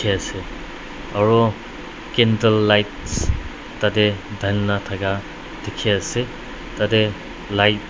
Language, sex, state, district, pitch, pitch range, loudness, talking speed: Nagamese, male, Nagaland, Dimapur, 105 Hz, 100-105 Hz, -20 LUFS, 90 wpm